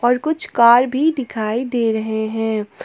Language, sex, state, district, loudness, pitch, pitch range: Hindi, female, Jharkhand, Palamu, -17 LUFS, 235 Hz, 220-260 Hz